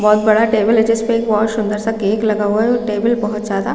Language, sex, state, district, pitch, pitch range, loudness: Hindi, female, Chhattisgarh, Raigarh, 220 Hz, 210-225 Hz, -15 LUFS